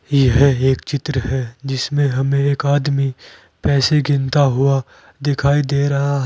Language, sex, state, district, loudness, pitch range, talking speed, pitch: Hindi, male, Uttar Pradesh, Saharanpur, -17 LUFS, 135-145 Hz, 145 wpm, 140 Hz